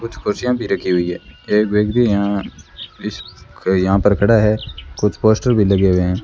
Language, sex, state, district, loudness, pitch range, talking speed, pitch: Hindi, female, Rajasthan, Bikaner, -17 LUFS, 95-110 Hz, 200 wpm, 105 Hz